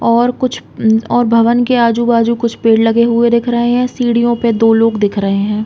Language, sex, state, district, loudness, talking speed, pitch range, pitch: Hindi, female, Uttar Pradesh, Hamirpur, -12 LUFS, 220 wpm, 225-240 Hz, 235 Hz